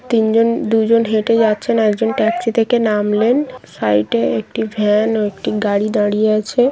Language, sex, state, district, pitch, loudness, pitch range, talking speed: Bengali, female, West Bengal, Jhargram, 220 Hz, -16 LUFS, 210-230 Hz, 160 wpm